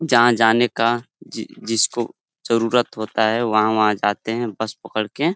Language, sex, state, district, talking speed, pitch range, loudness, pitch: Hindi, male, Uttar Pradesh, Deoria, 155 wpm, 110-120 Hz, -19 LUFS, 115 Hz